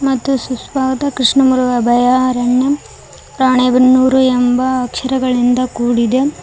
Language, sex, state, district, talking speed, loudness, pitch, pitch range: Kannada, female, Karnataka, Koppal, 75 wpm, -13 LUFS, 255 Hz, 250-265 Hz